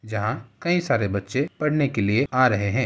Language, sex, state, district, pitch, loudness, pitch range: Hindi, male, Uttar Pradesh, Ghazipur, 130 Hz, -23 LUFS, 110-145 Hz